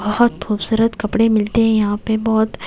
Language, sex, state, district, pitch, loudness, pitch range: Hindi, female, Haryana, Jhajjar, 220 Hz, -17 LUFS, 210-225 Hz